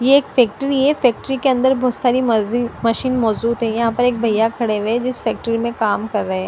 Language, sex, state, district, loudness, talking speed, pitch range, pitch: Hindi, female, Punjab, Fazilka, -18 LUFS, 230 wpm, 225-255 Hz, 235 Hz